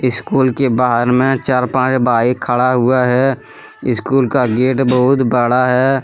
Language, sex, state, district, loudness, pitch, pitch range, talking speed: Hindi, male, Jharkhand, Deoghar, -14 LUFS, 125 Hz, 125-130 Hz, 160 wpm